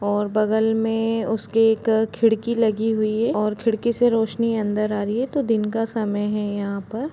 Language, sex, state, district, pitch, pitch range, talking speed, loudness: Hindi, female, Uttar Pradesh, Jalaun, 220 Hz, 210-225 Hz, 200 wpm, -21 LUFS